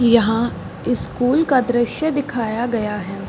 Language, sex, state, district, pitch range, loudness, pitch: Hindi, female, Bihar, Saran, 225-255 Hz, -19 LUFS, 240 Hz